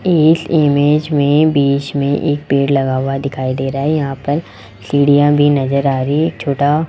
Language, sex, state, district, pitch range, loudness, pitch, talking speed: Hindi, male, Rajasthan, Jaipur, 135-150 Hz, -14 LUFS, 145 Hz, 210 wpm